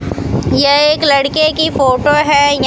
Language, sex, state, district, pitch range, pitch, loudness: Hindi, female, Rajasthan, Bikaner, 280-305 Hz, 290 Hz, -11 LUFS